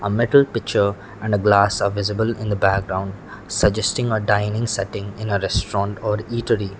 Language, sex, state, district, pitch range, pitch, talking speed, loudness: English, male, Sikkim, Gangtok, 100-110 Hz, 105 Hz, 165 wpm, -20 LUFS